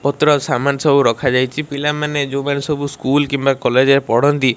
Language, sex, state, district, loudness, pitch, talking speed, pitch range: Odia, male, Odisha, Malkangiri, -16 LUFS, 140 Hz, 155 wpm, 135-145 Hz